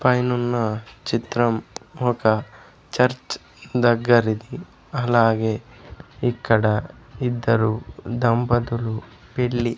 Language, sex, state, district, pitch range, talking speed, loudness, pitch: Telugu, male, Andhra Pradesh, Sri Satya Sai, 110-120 Hz, 60 wpm, -22 LUFS, 120 Hz